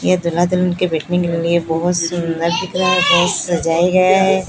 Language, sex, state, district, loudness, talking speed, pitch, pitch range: Hindi, female, Odisha, Sambalpur, -16 LUFS, 215 wpm, 175 Hz, 170-180 Hz